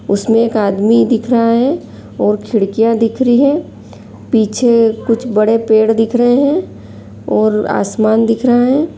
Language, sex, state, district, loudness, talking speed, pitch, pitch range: Angika, female, Bihar, Supaul, -13 LUFS, 155 wpm, 225 Hz, 215-240 Hz